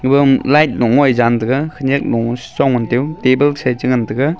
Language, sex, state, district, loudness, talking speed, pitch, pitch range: Wancho, male, Arunachal Pradesh, Longding, -14 LUFS, 190 wpm, 130 Hz, 125-140 Hz